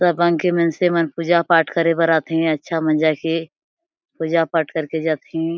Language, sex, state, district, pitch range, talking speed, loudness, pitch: Chhattisgarhi, female, Chhattisgarh, Jashpur, 160-170 Hz, 150 wpm, -19 LUFS, 165 Hz